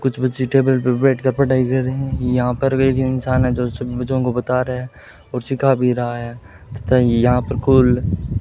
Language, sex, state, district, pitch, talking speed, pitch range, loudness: Hindi, male, Rajasthan, Bikaner, 125 Hz, 220 wpm, 125-130 Hz, -18 LUFS